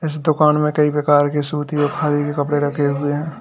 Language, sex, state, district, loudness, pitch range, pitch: Hindi, male, Uttar Pradesh, Lalitpur, -18 LUFS, 145-150 Hz, 150 Hz